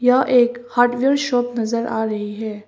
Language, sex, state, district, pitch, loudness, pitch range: Hindi, female, Arunachal Pradesh, Papum Pare, 240 Hz, -19 LUFS, 220-245 Hz